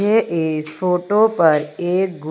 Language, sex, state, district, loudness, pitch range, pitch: Hindi, female, Madhya Pradesh, Umaria, -18 LUFS, 160-195 Hz, 175 Hz